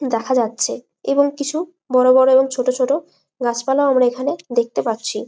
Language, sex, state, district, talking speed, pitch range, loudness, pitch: Bengali, female, West Bengal, Malda, 145 wpm, 240-280 Hz, -18 LUFS, 260 Hz